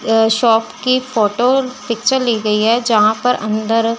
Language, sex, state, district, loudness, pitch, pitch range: Hindi, female, Chandigarh, Chandigarh, -15 LUFS, 230 Hz, 220-250 Hz